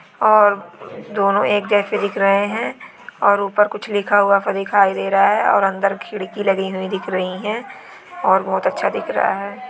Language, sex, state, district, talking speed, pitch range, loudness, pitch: Hindi, female, West Bengal, Dakshin Dinajpur, 185 wpm, 195-210 Hz, -18 LUFS, 200 Hz